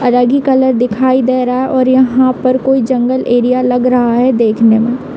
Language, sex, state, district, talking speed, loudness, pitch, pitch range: Hindi, female, Uttar Pradesh, Hamirpur, 210 wpm, -11 LUFS, 255 Hz, 245-260 Hz